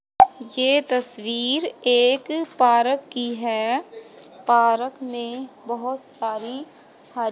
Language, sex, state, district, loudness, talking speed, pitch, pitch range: Hindi, female, Haryana, Jhajjar, -22 LUFS, 90 wpm, 250 Hz, 235-270 Hz